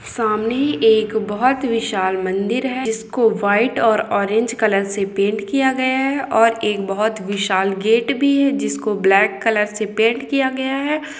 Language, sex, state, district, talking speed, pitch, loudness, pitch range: Hindi, female, Chhattisgarh, Balrampur, 165 wpm, 220 Hz, -18 LUFS, 205-260 Hz